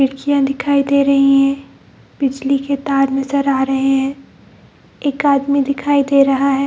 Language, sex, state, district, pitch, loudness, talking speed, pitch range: Hindi, female, Bihar, Jamui, 275 Hz, -15 LUFS, 160 wpm, 270-280 Hz